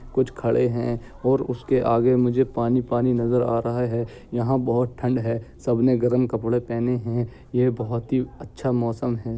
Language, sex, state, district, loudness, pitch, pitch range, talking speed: Hindi, male, Uttar Pradesh, Jyotiba Phule Nagar, -23 LUFS, 120 Hz, 120-125 Hz, 180 wpm